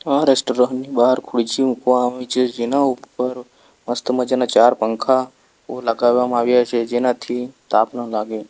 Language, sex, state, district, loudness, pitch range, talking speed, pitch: Gujarati, male, Gujarat, Valsad, -18 LUFS, 120-130 Hz, 150 wpm, 125 Hz